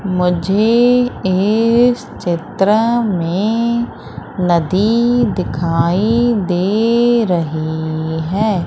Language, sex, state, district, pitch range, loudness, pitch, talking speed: Hindi, female, Madhya Pradesh, Umaria, 175-235 Hz, -15 LUFS, 200 Hz, 60 wpm